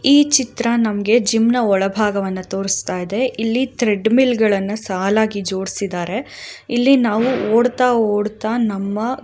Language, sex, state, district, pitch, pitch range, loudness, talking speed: Kannada, female, Karnataka, Raichur, 220 Hz, 200-245 Hz, -17 LUFS, 105 wpm